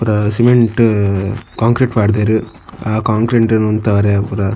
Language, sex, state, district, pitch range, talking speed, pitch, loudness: Tulu, male, Karnataka, Dakshina Kannada, 105-115 Hz, 120 wpm, 110 Hz, -14 LUFS